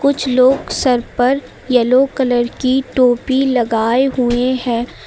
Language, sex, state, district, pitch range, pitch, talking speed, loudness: Hindi, female, Uttar Pradesh, Lucknow, 245-265 Hz, 255 Hz, 130 wpm, -15 LUFS